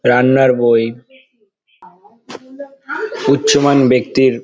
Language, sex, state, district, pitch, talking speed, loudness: Bengali, male, West Bengal, Dakshin Dinajpur, 140 Hz, 65 wpm, -13 LUFS